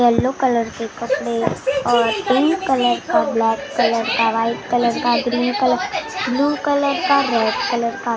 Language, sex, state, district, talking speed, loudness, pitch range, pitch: Hindi, female, Maharashtra, Gondia, 170 wpm, -18 LUFS, 235-270 Hz, 245 Hz